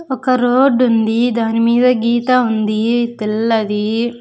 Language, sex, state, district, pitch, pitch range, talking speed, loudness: Telugu, female, Andhra Pradesh, Sri Satya Sai, 235 Hz, 225-250 Hz, 115 wpm, -15 LUFS